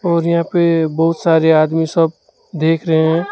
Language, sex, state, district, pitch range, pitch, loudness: Hindi, male, West Bengal, Alipurduar, 160-170 Hz, 165 Hz, -15 LUFS